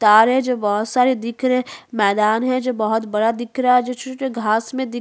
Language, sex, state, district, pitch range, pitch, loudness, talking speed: Hindi, female, Chhattisgarh, Bastar, 220-255 Hz, 240 Hz, -19 LUFS, 290 wpm